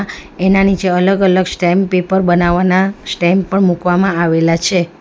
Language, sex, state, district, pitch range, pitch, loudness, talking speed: Gujarati, female, Gujarat, Valsad, 175-190 Hz, 185 Hz, -13 LUFS, 145 wpm